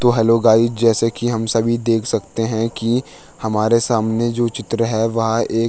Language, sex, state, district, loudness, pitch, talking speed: Hindi, male, Uttarakhand, Tehri Garhwal, -18 LUFS, 115 Hz, 200 wpm